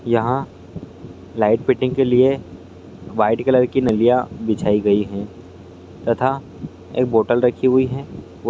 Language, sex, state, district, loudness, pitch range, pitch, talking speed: Hindi, male, Bihar, Purnia, -18 LUFS, 90-130 Hz, 115 Hz, 140 wpm